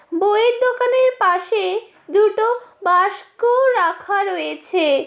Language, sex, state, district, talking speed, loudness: Bengali, female, West Bengal, Jhargram, 85 wpm, -18 LUFS